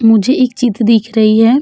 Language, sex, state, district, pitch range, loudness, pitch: Hindi, female, Uttar Pradesh, Jalaun, 220-250 Hz, -11 LUFS, 225 Hz